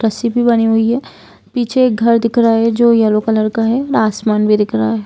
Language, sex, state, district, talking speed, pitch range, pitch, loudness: Hindi, female, Jharkhand, Jamtara, 275 wpm, 215-235 Hz, 225 Hz, -13 LUFS